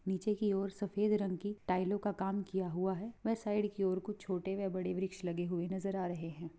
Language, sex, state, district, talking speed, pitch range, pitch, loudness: Hindi, female, Bihar, Bhagalpur, 245 wpm, 185-205 Hz, 190 Hz, -37 LUFS